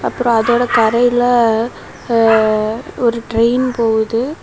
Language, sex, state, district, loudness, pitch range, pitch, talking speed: Tamil, female, Tamil Nadu, Kanyakumari, -14 LUFS, 225-245 Hz, 230 Hz, 95 wpm